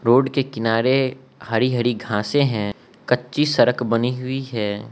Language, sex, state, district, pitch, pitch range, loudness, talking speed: Hindi, male, Arunachal Pradesh, Lower Dibang Valley, 120 Hz, 115-130 Hz, -21 LUFS, 145 wpm